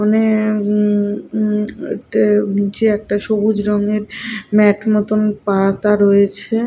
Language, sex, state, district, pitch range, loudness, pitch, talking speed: Bengali, female, Odisha, Khordha, 205-215 Hz, -16 LUFS, 210 Hz, 100 wpm